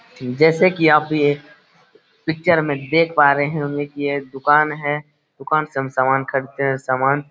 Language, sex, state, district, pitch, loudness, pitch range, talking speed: Hindi, male, Bihar, Lakhisarai, 145 Hz, -18 LUFS, 135-155 Hz, 190 wpm